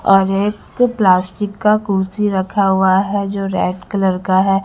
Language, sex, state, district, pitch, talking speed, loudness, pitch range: Hindi, female, Bihar, Kaimur, 195 Hz, 170 wpm, -16 LUFS, 190-205 Hz